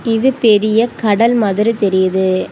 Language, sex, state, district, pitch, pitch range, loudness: Tamil, female, Tamil Nadu, Kanyakumari, 220 Hz, 200-230 Hz, -13 LUFS